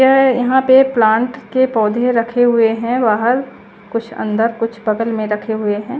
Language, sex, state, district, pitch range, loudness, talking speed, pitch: Hindi, female, Chandigarh, Chandigarh, 220-255 Hz, -15 LUFS, 180 wpm, 230 Hz